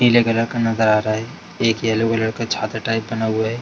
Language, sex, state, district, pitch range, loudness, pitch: Hindi, male, Bihar, Darbhanga, 110-115 Hz, -19 LUFS, 115 Hz